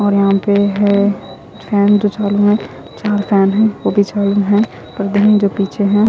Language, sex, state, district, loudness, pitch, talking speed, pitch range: Hindi, female, Odisha, Khordha, -14 LUFS, 205 Hz, 70 wpm, 200-205 Hz